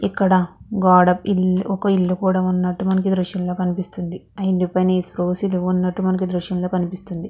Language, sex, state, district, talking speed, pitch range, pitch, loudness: Telugu, female, Andhra Pradesh, Krishna, 170 wpm, 180-190 Hz, 185 Hz, -20 LUFS